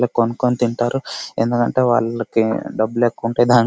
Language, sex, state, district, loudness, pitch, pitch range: Telugu, male, Karnataka, Bellary, -19 LUFS, 120 Hz, 115-120 Hz